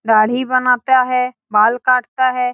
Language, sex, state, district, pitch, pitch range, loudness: Hindi, female, Bihar, Saran, 250 Hz, 235-255 Hz, -15 LUFS